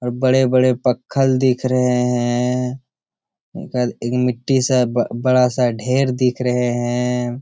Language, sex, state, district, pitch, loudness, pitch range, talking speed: Hindi, male, Bihar, Jamui, 125 Hz, -18 LUFS, 125-130 Hz, 120 wpm